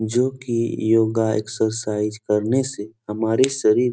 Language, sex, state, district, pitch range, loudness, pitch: Hindi, male, Bihar, Supaul, 110-120 Hz, -21 LUFS, 110 Hz